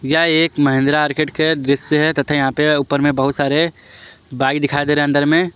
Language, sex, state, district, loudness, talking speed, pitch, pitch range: Hindi, male, Jharkhand, Palamu, -16 LUFS, 215 wpm, 145 Hz, 140-155 Hz